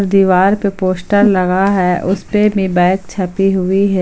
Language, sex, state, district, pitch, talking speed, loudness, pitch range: Hindi, female, Jharkhand, Palamu, 190 Hz, 180 wpm, -13 LUFS, 185-200 Hz